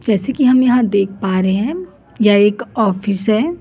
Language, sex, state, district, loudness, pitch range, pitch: Hindi, female, Chhattisgarh, Raipur, -15 LUFS, 200-255 Hz, 215 Hz